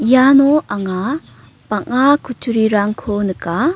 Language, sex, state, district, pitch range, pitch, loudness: Garo, female, Meghalaya, North Garo Hills, 205-275 Hz, 235 Hz, -15 LUFS